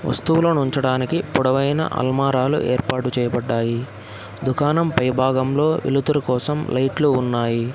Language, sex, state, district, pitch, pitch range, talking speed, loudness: Telugu, male, Telangana, Hyderabad, 130 Hz, 125-150 Hz, 95 wpm, -20 LUFS